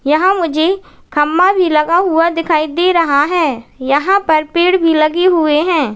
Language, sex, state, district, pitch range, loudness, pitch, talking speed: Hindi, female, Uttar Pradesh, Lalitpur, 305-360 Hz, -13 LUFS, 330 Hz, 170 wpm